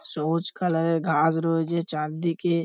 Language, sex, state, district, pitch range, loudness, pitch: Bengali, male, West Bengal, Paschim Medinipur, 160-170 Hz, -25 LUFS, 165 Hz